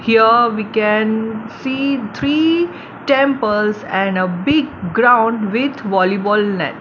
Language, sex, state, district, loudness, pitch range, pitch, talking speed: English, female, Gujarat, Valsad, -16 LUFS, 210-270 Hz, 225 Hz, 115 wpm